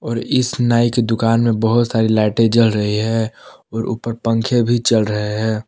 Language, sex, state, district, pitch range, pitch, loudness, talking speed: Hindi, male, Jharkhand, Palamu, 110-120 Hz, 115 Hz, -17 LUFS, 200 wpm